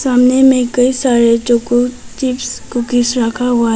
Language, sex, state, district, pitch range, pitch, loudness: Hindi, female, Arunachal Pradesh, Papum Pare, 240-255 Hz, 245 Hz, -13 LUFS